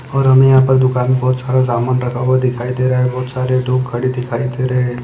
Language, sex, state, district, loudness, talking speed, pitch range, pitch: Hindi, male, Maharashtra, Chandrapur, -15 LUFS, 250 wpm, 125-130 Hz, 130 Hz